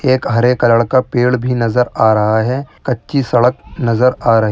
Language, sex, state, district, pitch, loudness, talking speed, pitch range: Hindi, male, Rajasthan, Churu, 125 Hz, -14 LUFS, 200 wpm, 115-130 Hz